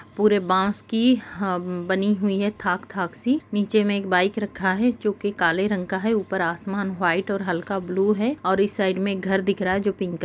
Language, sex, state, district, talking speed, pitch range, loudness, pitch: Hindi, female, Bihar, Gaya, 235 wpm, 185-210 Hz, -23 LUFS, 195 Hz